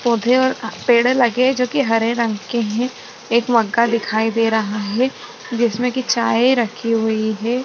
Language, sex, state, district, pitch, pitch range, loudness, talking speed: Hindi, female, Chhattisgarh, Rajnandgaon, 235 Hz, 225-250 Hz, -18 LUFS, 175 wpm